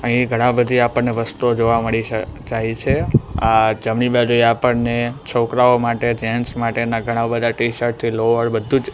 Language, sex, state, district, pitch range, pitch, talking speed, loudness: Gujarati, male, Gujarat, Gandhinagar, 115-120 Hz, 115 Hz, 160 wpm, -18 LUFS